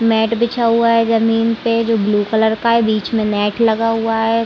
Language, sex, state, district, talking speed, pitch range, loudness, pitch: Hindi, female, Chhattisgarh, Raigarh, 215 wpm, 220-230 Hz, -15 LUFS, 225 Hz